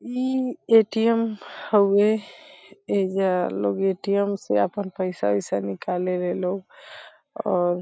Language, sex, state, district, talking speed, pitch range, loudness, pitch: Hindi, female, Uttar Pradesh, Deoria, 115 wpm, 180-215 Hz, -23 LUFS, 195 Hz